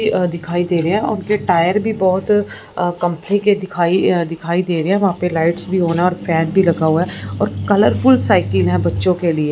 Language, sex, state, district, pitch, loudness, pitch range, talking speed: Hindi, female, Punjab, Fazilka, 175 Hz, -16 LUFS, 165-195 Hz, 220 wpm